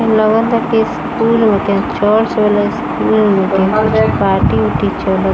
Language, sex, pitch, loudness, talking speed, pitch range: Bhojpuri, female, 215 Hz, -13 LUFS, 135 wpm, 205-225 Hz